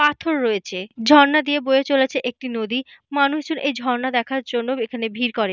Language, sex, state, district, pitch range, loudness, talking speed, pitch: Bengali, female, Jharkhand, Jamtara, 235-280 Hz, -20 LUFS, 175 wpm, 260 Hz